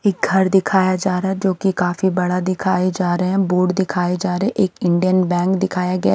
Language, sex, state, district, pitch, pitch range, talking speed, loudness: Hindi, female, Himachal Pradesh, Shimla, 185 Hz, 180-190 Hz, 235 wpm, -18 LUFS